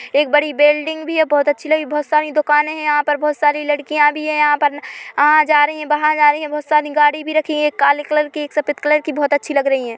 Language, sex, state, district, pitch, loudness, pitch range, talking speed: Hindi, female, Chhattisgarh, Korba, 300 Hz, -16 LUFS, 295-300 Hz, 290 wpm